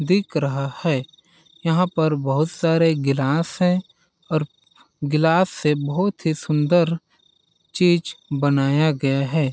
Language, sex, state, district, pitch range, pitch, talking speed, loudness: Hindi, male, Chhattisgarh, Balrampur, 145-175 Hz, 160 Hz, 120 wpm, -21 LUFS